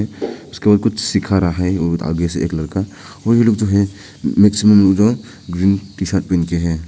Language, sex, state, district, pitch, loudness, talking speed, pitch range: Hindi, male, Arunachal Pradesh, Papum Pare, 100 Hz, -16 LUFS, 200 wpm, 90-105 Hz